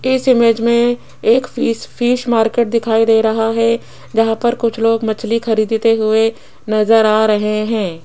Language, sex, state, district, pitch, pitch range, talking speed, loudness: Hindi, female, Rajasthan, Jaipur, 225 Hz, 220-235 Hz, 165 wpm, -15 LUFS